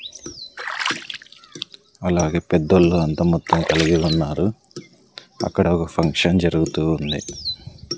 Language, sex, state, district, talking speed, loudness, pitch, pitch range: Telugu, male, Andhra Pradesh, Sri Satya Sai, 85 wpm, -20 LUFS, 85 Hz, 80-90 Hz